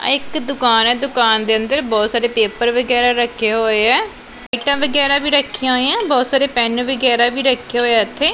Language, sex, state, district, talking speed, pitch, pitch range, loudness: Punjabi, female, Punjab, Pathankot, 200 wpm, 245 Hz, 235-275 Hz, -15 LUFS